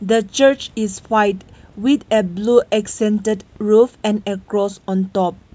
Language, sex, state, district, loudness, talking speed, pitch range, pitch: English, female, Nagaland, Kohima, -18 LUFS, 150 wpm, 200-225 Hz, 215 Hz